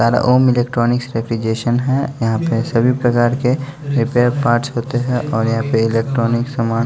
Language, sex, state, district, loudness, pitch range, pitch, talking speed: Hindi, male, Bihar, West Champaran, -17 LUFS, 115-130 Hz, 120 Hz, 165 wpm